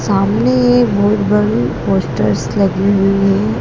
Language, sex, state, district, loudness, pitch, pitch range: Hindi, female, Madhya Pradesh, Dhar, -13 LUFS, 205 Hz, 195-215 Hz